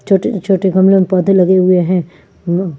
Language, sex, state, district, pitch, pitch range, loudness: Hindi, female, Chandigarh, Chandigarh, 185 Hz, 180-195 Hz, -12 LUFS